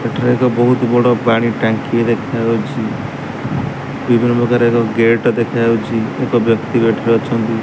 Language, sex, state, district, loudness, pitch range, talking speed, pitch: Odia, male, Odisha, Sambalpur, -15 LUFS, 115-120 Hz, 135 wpm, 115 Hz